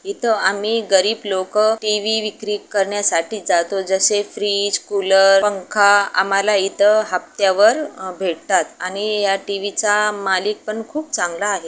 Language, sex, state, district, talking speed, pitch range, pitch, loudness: Marathi, female, Maharashtra, Aurangabad, 125 wpm, 195-215 Hz, 205 Hz, -17 LUFS